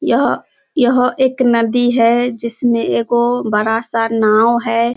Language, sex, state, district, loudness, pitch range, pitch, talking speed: Hindi, female, Bihar, Kishanganj, -15 LUFS, 230-245 Hz, 235 Hz, 135 wpm